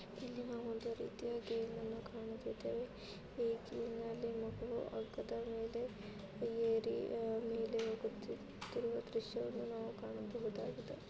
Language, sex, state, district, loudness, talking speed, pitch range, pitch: Kannada, female, Karnataka, Dharwad, -43 LUFS, 85 wpm, 225-235 Hz, 230 Hz